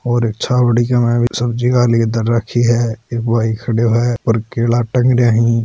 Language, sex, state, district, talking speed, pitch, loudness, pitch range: Hindi, male, Rajasthan, Churu, 170 wpm, 120 Hz, -15 LUFS, 115-120 Hz